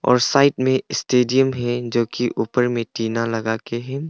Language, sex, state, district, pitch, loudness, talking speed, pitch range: Hindi, male, Arunachal Pradesh, Longding, 120 Hz, -20 LUFS, 190 wpm, 115-130 Hz